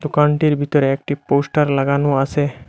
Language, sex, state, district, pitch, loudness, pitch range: Bengali, male, Assam, Hailakandi, 145 Hz, -17 LUFS, 140-150 Hz